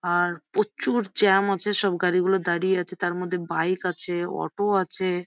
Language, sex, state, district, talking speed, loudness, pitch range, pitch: Bengali, female, West Bengal, Jhargram, 170 wpm, -23 LUFS, 175-195 Hz, 185 Hz